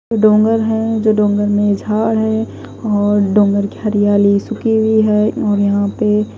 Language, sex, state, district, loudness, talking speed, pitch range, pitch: Hindi, female, Himachal Pradesh, Shimla, -14 LUFS, 160 wpm, 205-220 Hz, 210 Hz